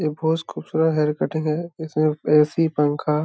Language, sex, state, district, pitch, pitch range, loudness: Hindi, male, Jharkhand, Sahebganj, 155 Hz, 150-160 Hz, -21 LUFS